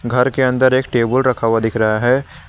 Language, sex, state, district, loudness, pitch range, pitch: Hindi, male, Jharkhand, Garhwa, -15 LUFS, 115-130 Hz, 125 Hz